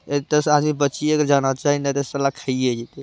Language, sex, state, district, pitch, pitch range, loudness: Hindi, male, Bihar, Araria, 140 Hz, 135-150 Hz, -20 LUFS